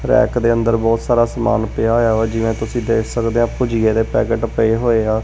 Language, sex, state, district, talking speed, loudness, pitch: Punjabi, male, Punjab, Kapurthala, 240 wpm, -16 LUFS, 115 Hz